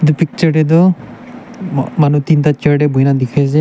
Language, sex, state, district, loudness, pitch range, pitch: Nagamese, male, Nagaland, Dimapur, -13 LUFS, 145-165 Hz, 155 Hz